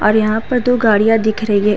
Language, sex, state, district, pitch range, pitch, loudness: Hindi, female, Uttar Pradesh, Hamirpur, 215-225 Hz, 220 Hz, -14 LUFS